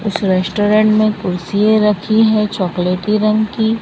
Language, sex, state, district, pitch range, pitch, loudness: Hindi, female, Maharashtra, Mumbai Suburban, 190-215 Hz, 210 Hz, -14 LUFS